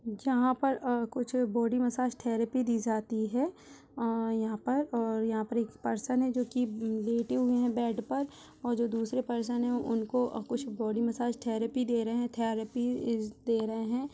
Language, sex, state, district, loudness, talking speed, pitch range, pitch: Hindi, female, Bihar, Purnia, -32 LUFS, 180 wpm, 225-250 Hz, 235 Hz